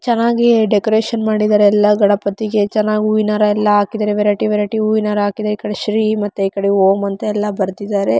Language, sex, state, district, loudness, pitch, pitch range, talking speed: Kannada, female, Karnataka, Shimoga, -15 LUFS, 210 Hz, 205-215 Hz, 160 wpm